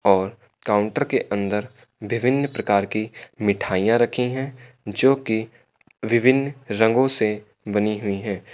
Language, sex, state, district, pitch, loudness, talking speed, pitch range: Hindi, male, Uttar Pradesh, Lucknow, 110 Hz, -21 LUFS, 125 wpm, 105-130 Hz